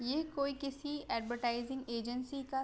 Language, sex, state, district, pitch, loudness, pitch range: Hindi, female, Uttar Pradesh, Ghazipur, 265 Hz, -38 LUFS, 240-280 Hz